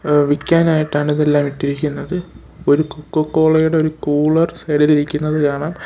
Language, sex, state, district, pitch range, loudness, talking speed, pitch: Malayalam, male, Kerala, Kollam, 145-160 Hz, -16 LUFS, 105 wpm, 150 Hz